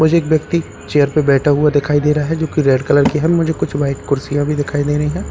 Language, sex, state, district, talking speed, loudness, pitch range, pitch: Hindi, male, Bihar, Katihar, 270 wpm, -15 LUFS, 145-155 Hz, 150 Hz